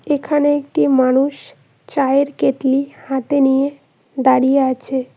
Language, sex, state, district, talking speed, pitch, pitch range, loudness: Bengali, female, West Bengal, Cooch Behar, 105 wpm, 275 Hz, 265-285 Hz, -16 LUFS